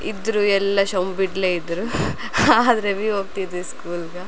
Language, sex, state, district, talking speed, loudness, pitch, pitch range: Kannada, female, Karnataka, Raichur, 110 wpm, -21 LUFS, 195 Hz, 180-205 Hz